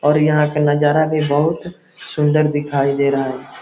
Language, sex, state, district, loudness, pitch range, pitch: Hindi, male, Bihar, Gopalganj, -17 LUFS, 140-155 Hz, 150 Hz